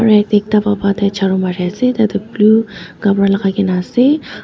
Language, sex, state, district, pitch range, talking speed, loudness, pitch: Nagamese, female, Nagaland, Dimapur, 195-215 Hz, 175 wpm, -14 LUFS, 200 Hz